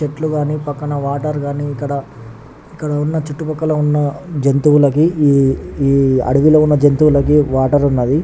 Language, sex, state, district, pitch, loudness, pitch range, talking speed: Telugu, male, Telangana, Nalgonda, 145 Hz, -15 LUFS, 140-150 Hz, 125 wpm